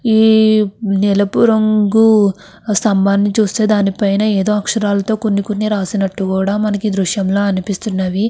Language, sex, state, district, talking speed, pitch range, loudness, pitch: Telugu, female, Andhra Pradesh, Krishna, 115 wpm, 200-215 Hz, -14 LUFS, 205 Hz